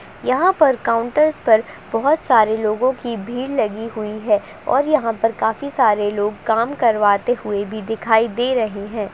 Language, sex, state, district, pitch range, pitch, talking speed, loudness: Hindi, female, Uttar Pradesh, Budaun, 215-255 Hz, 230 Hz, 170 wpm, -18 LUFS